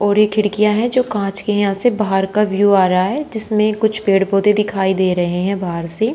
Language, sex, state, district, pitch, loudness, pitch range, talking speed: Hindi, female, Haryana, Charkhi Dadri, 205 Hz, -16 LUFS, 195-215 Hz, 265 wpm